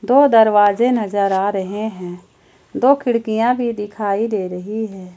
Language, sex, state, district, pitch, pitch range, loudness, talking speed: Hindi, female, Jharkhand, Ranchi, 215 Hz, 200-230 Hz, -17 LUFS, 150 wpm